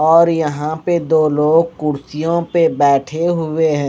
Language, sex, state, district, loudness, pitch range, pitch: Hindi, male, Odisha, Malkangiri, -15 LUFS, 150-170 Hz, 160 Hz